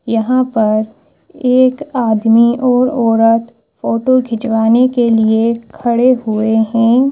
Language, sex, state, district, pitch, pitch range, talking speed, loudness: Hindi, female, Madhya Pradesh, Bhopal, 230 Hz, 225-255 Hz, 110 wpm, -13 LUFS